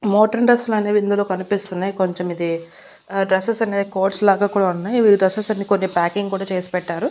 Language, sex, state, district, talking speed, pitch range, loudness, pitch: Telugu, female, Andhra Pradesh, Annamaya, 185 wpm, 185-210 Hz, -19 LUFS, 195 Hz